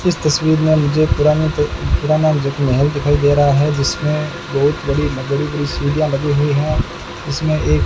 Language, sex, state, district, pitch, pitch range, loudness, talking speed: Hindi, male, Rajasthan, Bikaner, 150 Hz, 140-155 Hz, -16 LUFS, 190 wpm